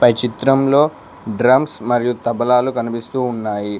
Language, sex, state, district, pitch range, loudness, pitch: Telugu, male, Telangana, Mahabubabad, 115-130 Hz, -17 LUFS, 120 Hz